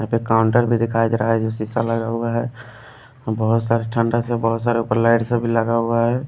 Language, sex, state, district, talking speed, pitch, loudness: Hindi, male, Delhi, New Delhi, 260 wpm, 115 Hz, -19 LUFS